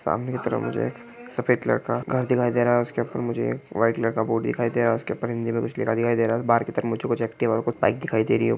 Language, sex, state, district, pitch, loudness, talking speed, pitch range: Hindi, male, Chhattisgarh, Sukma, 115 Hz, -24 LUFS, 330 wpm, 115-120 Hz